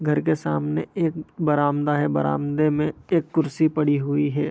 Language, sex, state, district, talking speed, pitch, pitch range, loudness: Hindi, male, Bihar, Begusarai, 175 wpm, 150 Hz, 145-155 Hz, -23 LUFS